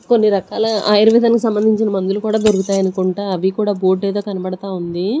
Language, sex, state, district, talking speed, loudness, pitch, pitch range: Telugu, female, Andhra Pradesh, Sri Satya Sai, 160 wpm, -16 LUFS, 200 Hz, 190-215 Hz